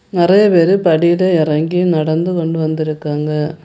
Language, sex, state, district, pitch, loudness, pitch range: Tamil, female, Tamil Nadu, Kanyakumari, 165 Hz, -14 LUFS, 155-175 Hz